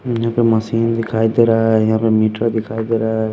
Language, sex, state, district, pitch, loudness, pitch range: Hindi, male, Bihar, West Champaran, 115 Hz, -16 LUFS, 110-115 Hz